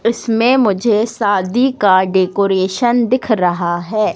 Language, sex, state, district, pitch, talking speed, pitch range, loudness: Hindi, female, Madhya Pradesh, Katni, 215 Hz, 115 wpm, 190-240 Hz, -14 LUFS